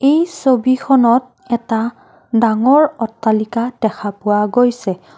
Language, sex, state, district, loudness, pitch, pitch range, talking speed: Assamese, female, Assam, Kamrup Metropolitan, -15 LUFS, 235 Hz, 220-255 Hz, 95 wpm